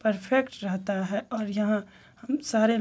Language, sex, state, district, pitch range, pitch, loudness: Hindi, male, Bihar, Bhagalpur, 205-230 Hz, 215 Hz, -28 LUFS